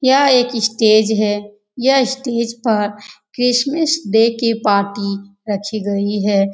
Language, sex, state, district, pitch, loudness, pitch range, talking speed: Hindi, female, Uttar Pradesh, Etah, 220 Hz, -16 LUFS, 205-245 Hz, 130 wpm